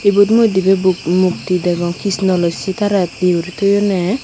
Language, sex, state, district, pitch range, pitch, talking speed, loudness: Chakma, female, Tripura, Unakoti, 180-200 Hz, 190 Hz, 185 wpm, -15 LUFS